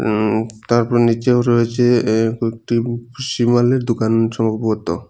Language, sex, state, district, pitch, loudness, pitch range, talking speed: Bengali, male, Tripura, Unakoti, 115 Hz, -17 LUFS, 110-120 Hz, 95 wpm